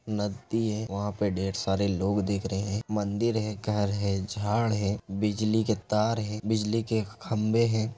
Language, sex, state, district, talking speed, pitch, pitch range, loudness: Hindi, male, Bihar, Begusarai, 180 wpm, 105 Hz, 100-110 Hz, -28 LUFS